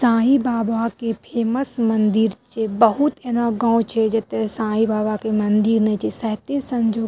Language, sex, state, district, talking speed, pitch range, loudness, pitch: Maithili, female, Bihar, Madhepura, 170 wpm, 220-235 Hz, -20 LUFS, 225 Hz